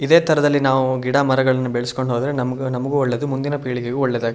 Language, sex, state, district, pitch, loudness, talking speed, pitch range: Kannada, male, Karnataka, Shimoga, 130 Hz, -19 LUFS, 180 wpm, 125-140 Hz